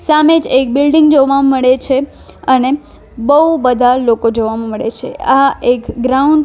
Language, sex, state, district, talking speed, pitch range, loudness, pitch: Gujarati, female, Gujarat, Valsad, 165 wpm, 245-285 Hz, -12 LUFS, 265 Hz